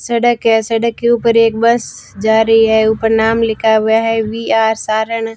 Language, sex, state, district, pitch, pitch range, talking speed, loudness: Hindi, female, Rajasthan, Barmer, 225 Hz, 220-230 Hz, 210 wpm, -13 LUFS